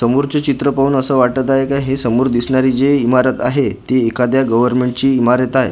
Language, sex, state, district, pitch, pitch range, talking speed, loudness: Marathi, male, Maharashtra, Gondia, 130 Hz, 125-135 Hz, 200 wpm, -14 LUFS